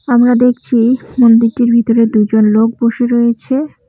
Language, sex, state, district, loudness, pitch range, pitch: Bengali, female, West Bengal, Cooch Behar, -11 LUFS, 230-245 Hz, 235 Hz